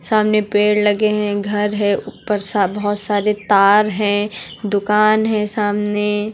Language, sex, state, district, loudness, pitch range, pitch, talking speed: Hindi, female, Uttar Pradesh, Lucknow, -17 LUFS, 205-210 Hz, 210 Hz, 140 wpm